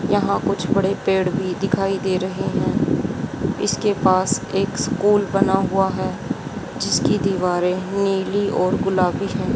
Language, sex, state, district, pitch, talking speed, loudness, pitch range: Hindi, female, Haryana, Jhajjar, 195 Hz, 140 wpm, -20 LUFS, 185-195 Hz